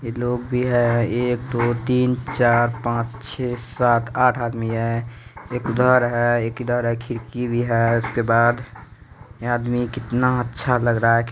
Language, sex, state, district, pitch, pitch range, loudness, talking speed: Hindi, male, Bihar, East Champaran, 120 Hz, 115-125 Hz, -21 LUFS, 180 wpm